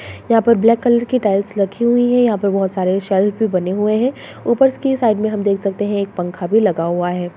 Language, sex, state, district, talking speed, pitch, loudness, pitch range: Hindi, female, Bihar, Lakhisarai, 260 wpm, 210 Hz, -16 LUFS, 195-235 Hz